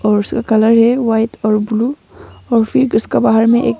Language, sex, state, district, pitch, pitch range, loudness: Hindi, female, Arunachal Pradesh, Longding, 225 Hz, 220-235 Hz, -13 LUFS